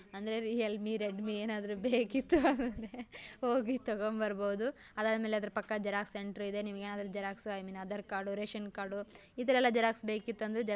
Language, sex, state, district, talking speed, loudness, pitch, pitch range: Kannada, female, Karnataka, Dakshina Kannada, 175 wpm, -36 LUFS, 215 Hz, 205-230 Hz